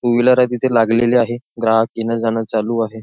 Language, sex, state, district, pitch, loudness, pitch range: Marathi, male, Maharashtra, Nagpur, 115 Hz, -16 LUFS, 115-120 Hz